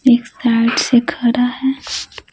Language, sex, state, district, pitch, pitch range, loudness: Hindi, female, Bihar, Patna, 245 Hz, 235-255 Hz, -16 LUFS